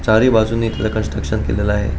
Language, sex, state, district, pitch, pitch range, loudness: Marathi, male, Goa, North and South Goa, 110 Hz, 75-110 Hz, -17 LUFS